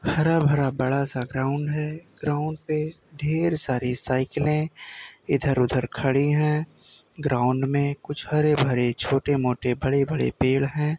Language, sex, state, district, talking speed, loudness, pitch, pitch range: Hindi, male, Uttar Pradesh, Gorakhpur, 140 wpm, -24 LUFS, 140 Hz, 130-150 Hz